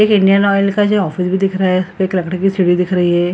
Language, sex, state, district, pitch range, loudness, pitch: Hindi, female, Bihar, Lakhisarai, 180-195 Hz, -14 LUFS, 190 Hz